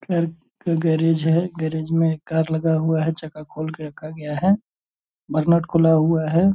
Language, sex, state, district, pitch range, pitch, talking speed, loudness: Hindi, male, Bihar, Purnia, 155-165 Hz, 160 Hz, 200 wpm, -21 LUFS